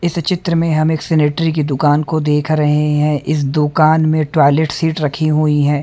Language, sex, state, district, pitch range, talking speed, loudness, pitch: Hindi, male, Haryana, Charkhi Dadri, 150-160 Hz, 205 wpm, -15 LUFS, 155 Hz